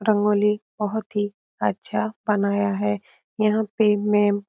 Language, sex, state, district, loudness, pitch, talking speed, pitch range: Hindi, female, Bihar, Lakhisarai, -23 LUFS, 210 Hz, 135 wpm, 205-215 Hz